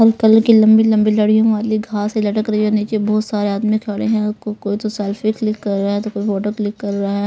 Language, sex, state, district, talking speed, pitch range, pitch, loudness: Hindi, male, Punjab, Pathankot, 255 wpm, 205-215 Hz, 215 Hz, -16 LUFS